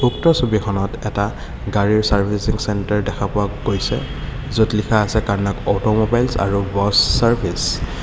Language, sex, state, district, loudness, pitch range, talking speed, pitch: Assamese, male, Assam, Kamrup Metropolitan, -18 LUFS, 100-110 Hz, 135 wpm, 105 Hz